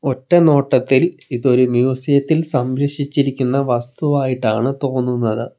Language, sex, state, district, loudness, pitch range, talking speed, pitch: Malayalam, male, Kerala, Kollam, -17 LUFS, 125-140 Hz, 75 wpm, 135 Hz